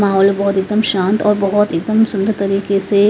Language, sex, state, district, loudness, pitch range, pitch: Hindi, female, Haryana, Rohtak, -15 LUFS, 195-210 Hz, 200 Hz